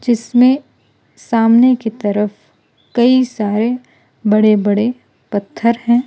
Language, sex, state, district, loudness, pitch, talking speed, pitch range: Hindi, female, Gujarat, Valsad, -15 LUFS, 230 Hz, 100 wpm, 210-245 Hz